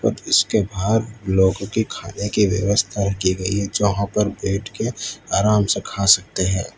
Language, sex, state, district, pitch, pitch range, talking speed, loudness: Hindi, male, Gujarat, Valsad, 100 Hz, 95-105 Hz, 170 wpm, -20 LUFS